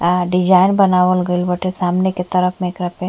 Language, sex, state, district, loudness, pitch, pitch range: Bhojpuri, female, Uttar Pradesh, Ghazipur, -16 LUFS, 180 Hz, 180-185 Hz